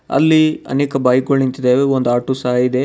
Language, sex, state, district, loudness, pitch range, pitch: Kannada, male, Karnataka, Bidar, -15 LUFS, 125-140 Hz, 130 Hz